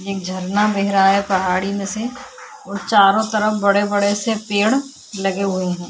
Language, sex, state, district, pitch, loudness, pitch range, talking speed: Hindi, female, Chhattisgarh, Korba, 200 Hz, -18 LUFS, 195-215 Hz, 160 wpm